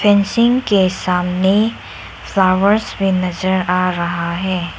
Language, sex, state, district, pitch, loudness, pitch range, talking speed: Hindi, female, Arunachal Pradesh, Lower Dibang Valley, 190 Hz, -16 LUFS, 180-205 Hz, 115 wpm